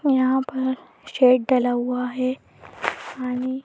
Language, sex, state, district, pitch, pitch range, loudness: Hindi, female, Madhya Pradesh, Bhopal, 255 Hz, 250-260 Hz, -22 LUFS